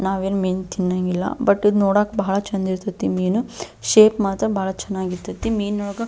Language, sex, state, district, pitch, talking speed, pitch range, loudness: Kannada, female, Karnataka, Belgaum, 195 Hz, 170 wpm, 185-205 Hz, -20 LUFS